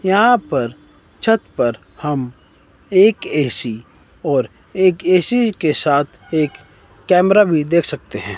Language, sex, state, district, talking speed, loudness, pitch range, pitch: Hindi, male, Himachal Pradesh, Shimla, 130 wpm, -17 LUFS, 115-190 Hz, 155 Hz